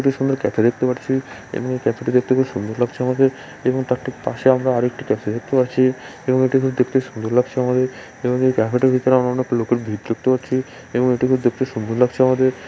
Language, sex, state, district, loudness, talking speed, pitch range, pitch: Bengali, male, West Bengal, Malda, -19 LUFS, 215 wpm, 125-130 Hz, 130 Hz